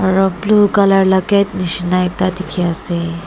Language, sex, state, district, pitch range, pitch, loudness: Nagamese, female, Nagaland, Dimapur, 180-195 Hz, 185 Hz, -15 LUFS